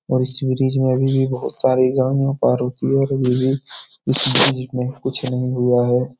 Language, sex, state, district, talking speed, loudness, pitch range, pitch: Hindi, male, Bihar, Jahanabad, 205 wpm, -18 LUFS, 125-135 Hz, 130 Hz